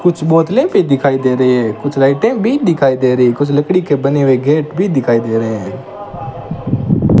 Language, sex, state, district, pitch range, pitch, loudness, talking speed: Hindi, male, Rajasthan, Bikaner, 130-165 Hz, 140 Hz, -13 LUFS, 200 wpm